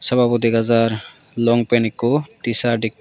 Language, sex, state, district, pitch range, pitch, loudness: Chakma, male, Tripura, West Tripura, 115-120 Hz, 120 Hz, -18 LUFS